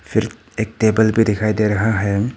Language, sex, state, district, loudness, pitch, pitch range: Hindi, male, Arunachal Pradesh, Papum Pare, -18 LUFS, 110 Hz, 105-110 Hz